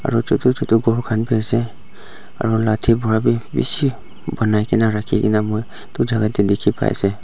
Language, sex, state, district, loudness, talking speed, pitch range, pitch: Nagamese, male, Nagaland, Dimapur, -18 LUFS, 200 wpm, 105-115 Hz, 110 Hz